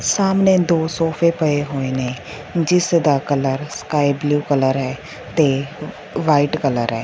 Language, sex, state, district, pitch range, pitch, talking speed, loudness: Punjabi, female, Punjab, Fazilka, 135-165 Hz, 145 Hz, 135 wpm, -18 LUFS